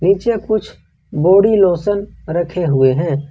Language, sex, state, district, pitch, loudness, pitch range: Hindi, male, Jharkhand, Ranchi, 180 Hz, -15 LUFS, 160-205 Hz